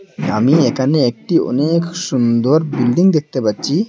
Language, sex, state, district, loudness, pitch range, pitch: Bengali, male, Assam, Hailakandi, -15 LUFS, 125-175 Hz, 155 Hz